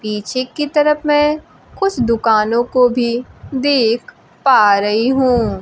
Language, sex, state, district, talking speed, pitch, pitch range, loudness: Hindi, female, Bihar, Kaimur, 130 wpm, 245 Hz, 225-295 Hz, -15 LUFS